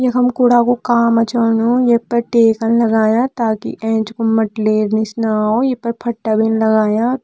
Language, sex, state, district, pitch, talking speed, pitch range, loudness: Kumaoni, female, Uttarakhand, Tehri Garhwal, 230 Hz, 175 wpm, 220-240 Hz, -15 LUFS